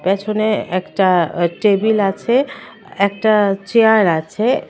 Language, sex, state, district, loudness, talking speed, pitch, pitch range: Bengali, female, Tripura, West Tripura, -16 LUFS, 100 wpm, 200 Hz, 190-220 Hz